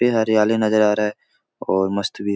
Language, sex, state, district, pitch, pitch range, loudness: Hindi, male, Bihar, Supaul, 105 Hz, 100-110 Hz, -19 LUFS